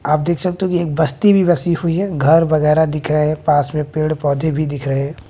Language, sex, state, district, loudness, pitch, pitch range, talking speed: Hindi, male, Bihar, West Champaran, -16 LUFS, 155 Hz, 150-170 Hz, 250 wpm